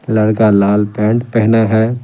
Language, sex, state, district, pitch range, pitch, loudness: Hindi, male, Bihar, Patna, 105-115 Hz, 110 Hz, -13 LUFS